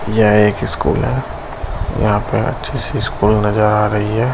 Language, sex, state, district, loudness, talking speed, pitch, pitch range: Hindi, male, Uttar Pradesh, Gorakhpur, -16 LUFS, 180 wpm, 105 Hz, 105-115 Hz